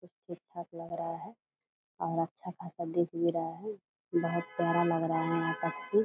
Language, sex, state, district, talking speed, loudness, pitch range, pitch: Hindi, female, Bihar, Purnia, 200 wpm, -34 LUFS, 165-175 Hz, 170 Hz